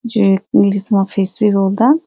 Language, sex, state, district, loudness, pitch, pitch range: Garhwali, female, Uttarakhand, Uttarkashi, -14 LUFS, 200 Hz, 195-230 Hz